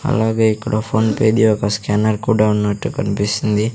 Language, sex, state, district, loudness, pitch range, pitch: Telugu, male, Andhra Pradesh, Sri Satya Sai, -17 LUFS, 105-110 Hz, 110 Hz